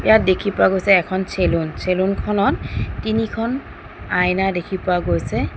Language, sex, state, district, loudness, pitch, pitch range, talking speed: Assamese, female, Assam, Sonitpur, -19 LUFS, 190 Hz, 185-210 Hz, 140 wpm